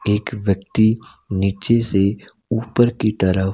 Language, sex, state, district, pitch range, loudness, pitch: Hindi, male, Himachal Pradesh, Shimla, 100-115 Hz, -19 LUFS, 105 Hz